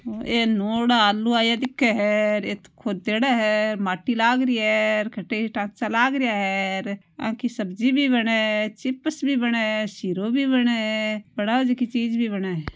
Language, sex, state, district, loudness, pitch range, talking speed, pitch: Marwari, female, Rajasthan, Nagaur, -22 LUFS, 210-245 Hz, 185 wpm, 225 Hz